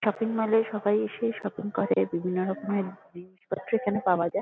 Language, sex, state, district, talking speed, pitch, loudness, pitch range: Bengali, female, West Bengal, North 24 Parganas, 160 wpm, 205 Hz, -28 LUFS, 180-215 Hz